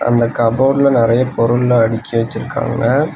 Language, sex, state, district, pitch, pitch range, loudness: Tamil, male, Tamil Nadu, Nilgiris, 120 Hz, 115-135 Hz, -14 LUFS